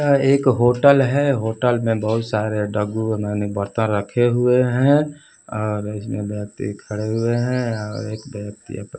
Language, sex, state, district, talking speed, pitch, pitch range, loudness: Hindi, male, Bihar, Kaimur, 160 wpm, 110 Hz, 105-125 Hz, -20 LUFS